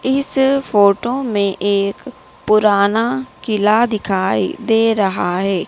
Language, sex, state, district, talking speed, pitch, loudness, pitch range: Hindi, female, Madhya Pradesh, Dhar, 105 wpm, 215 Hz, -16 LUFS, 200-255 Hz